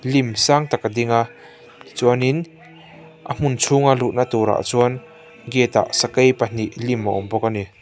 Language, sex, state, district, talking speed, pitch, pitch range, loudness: Mizo, male, Mizoram, Aizawl, 175 wpm, 125 Hz, 115-140 Hz, -19 LUFS